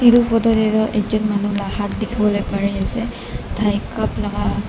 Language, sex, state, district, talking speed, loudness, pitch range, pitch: Nagamese, male, Nagaland, Dimapur, 155 wpm, -19 LUFS, 205-220 Hz, 210 Hz